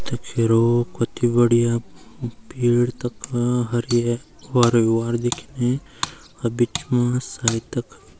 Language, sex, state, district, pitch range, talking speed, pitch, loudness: Garhwali, male, Uttarakhand, Uttarkashi, 115-120 Hz, 125 wpm, 120 Hz, -21 LUFS